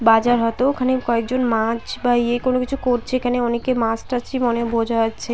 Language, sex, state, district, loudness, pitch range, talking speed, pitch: Bengali, female, West Bengal, Paschim Medinipur, -20 LUFS, 230-255 Hz, 200 wpm, 240 Hz